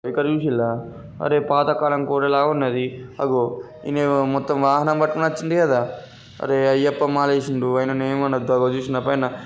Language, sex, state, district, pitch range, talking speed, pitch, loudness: Telugu, male, Telangana, Karimnagar, 130-145 Hz, 150 wpm, 140 Hz, -20 LUFS